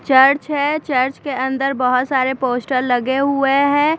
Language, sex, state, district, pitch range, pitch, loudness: Hindi, female, Bihar, Katihar, 255-280 Hz, 270 Hz, -17 LUFS